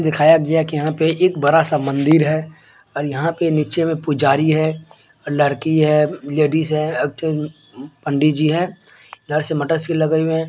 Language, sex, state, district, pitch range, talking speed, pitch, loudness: Maithili, male, Bihar, Supaul, 150-160 Hz, 170 wpm, 155 Hz, -17 LUFS